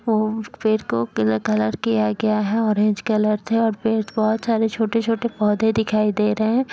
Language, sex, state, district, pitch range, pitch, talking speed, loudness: Hindi, female, Uttar Pradesh, Jyotiba Phule Nagar, 210-225 Hz, 215 Hz, 205 wpm, -20 LUFS